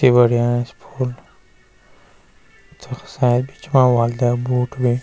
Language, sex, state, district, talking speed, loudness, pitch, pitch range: Garhwali, male, Uttarakhand, Uttarkashi, 120 wpm, -18 LUFS, 125 Hz, 120-130 Hz